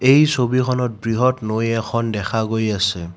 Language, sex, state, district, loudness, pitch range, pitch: Assamese, male, Assam, Kamrup Metropolitan, -19 LUFS, 110-125 Hz, 115 Hz